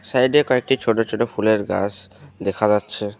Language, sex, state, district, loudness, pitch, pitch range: Bengali, male, West Bengal, Alipurduar, -20 LUFS, 110 Hz, 105-120 Hz